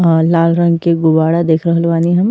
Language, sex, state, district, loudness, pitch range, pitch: Bhojpuri, female, Uttar Pradesh, Ghazipur, -12 LUFS, 165-170 Hz, 170 Hz